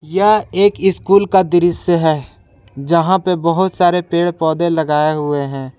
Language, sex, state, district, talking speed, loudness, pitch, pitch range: Hindi, male, Jharkhand, Palamu, 155 wpm, -14 LUFS, 170 Hz, 150-190 Hz